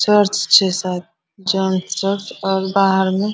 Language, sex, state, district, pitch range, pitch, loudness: Hindi, female, Bihar, Araria, 185-200 Hz, 190 Hz, -17 LUFS